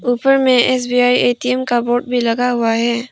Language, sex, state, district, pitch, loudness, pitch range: Hindi, female, Arunachal Pradesh, Papum Pare, 245 Hz, -15 LUFS, 240-250 Hz